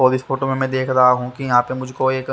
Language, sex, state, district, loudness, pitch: Hindi, male, Haryana, Charkhi Dadri, -18 LUFS, 130 Hz